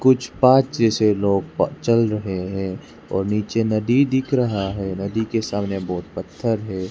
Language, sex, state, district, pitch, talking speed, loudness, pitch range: Hindi, male, Arunachal Pradesh, Lower Dibang Valley, 105 Hz, 165 wpm, -21 LUFS, 95-115 Hz